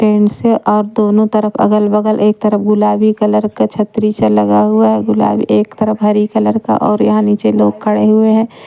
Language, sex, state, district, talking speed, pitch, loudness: Hindi, female, Haryana, Rohtak, 200 wpm, 210 Hz, -12 LUFS